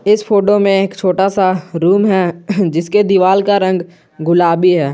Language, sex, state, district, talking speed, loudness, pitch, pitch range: Hindi, male, Jharkhand, Garhwa, 170 wpm, -13 LUFS, 185 Hz, 175-200 Hz